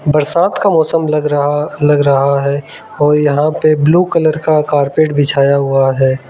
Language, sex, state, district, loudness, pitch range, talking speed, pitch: Hindi, male, Arunachal Pradesh, Lower Dibang Valley, -12 LUFS, 140-155 Hz, 170 wpm, 150 Hz